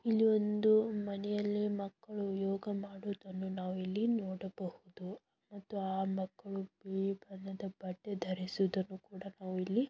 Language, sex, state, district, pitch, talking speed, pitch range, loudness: Kannada, female, Karnataka, Belgaum, 195 Hz, 120 wpm, 190-205 Hz, -37 LUFS